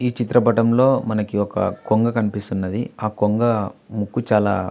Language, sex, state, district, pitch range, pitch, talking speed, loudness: Telugu, male, Andhra Pradesh, Visakhapatnam, 105-120 Hz, 110 Hz, 140 wpm, -20 LUFS